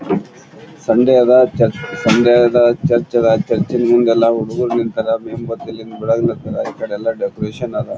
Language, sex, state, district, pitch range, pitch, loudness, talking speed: Kannada, male, Karnataka, Gulbarga, 115-125 Hz, 120 Hz, -15 LUFS, 150 wpm